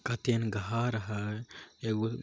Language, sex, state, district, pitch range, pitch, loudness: Magahi, male, Bihar, Jamui, 110-120 Hz, 110 Hz, -33 LUFS